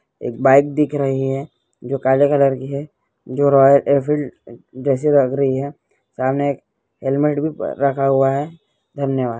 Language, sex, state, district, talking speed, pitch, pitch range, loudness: Hindi, male, West Bengal, Malda, 170 wpm, 135 Hz, 130-140 Hz, -18 LUFS